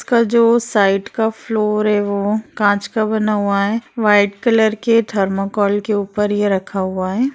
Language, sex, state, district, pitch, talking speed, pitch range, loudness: Hindi, female, Bihar, Darbhanga, 210 Hz, 180 wpm, 200-225 Hz, -17 LUFS